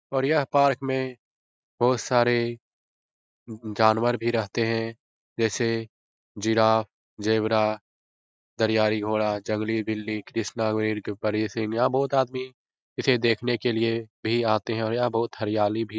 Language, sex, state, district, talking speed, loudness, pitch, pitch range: Hindi, male, Bihar, Jahanabad, 145 wpm, -25 LUFS, 115 Hz, 110-120 Hz